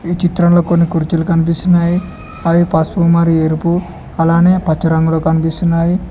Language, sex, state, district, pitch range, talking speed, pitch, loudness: Telugu, male, Telangana, Hyderabad, 165-175 Hz, 120 wpm, 170 Hz, -13 LUFS